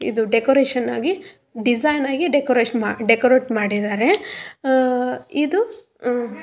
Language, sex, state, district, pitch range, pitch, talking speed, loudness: Kannada, female, Karnataka, Raichur, 235-300 Hz, 255 Hz, 105 wpm, -19 LUFS